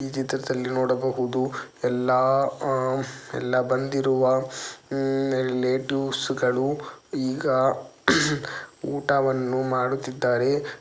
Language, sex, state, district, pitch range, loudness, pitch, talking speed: Kannada, male, Karnataka, Dakshina Kannada, 130-135 Hz, -25 LUFS, 130 Hz, 70 wpm